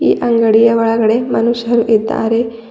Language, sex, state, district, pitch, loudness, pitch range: Kannada, female, Karnataka, Bidar, 230 Hz, -13 LUFS, 225-235 Hz